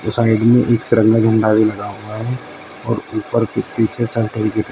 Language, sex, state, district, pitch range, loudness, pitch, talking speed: Hindi, male, Uttar Pradesh, Shamli, 110-115 Hz, -16 LUFS, 110 Hz, 180 wpm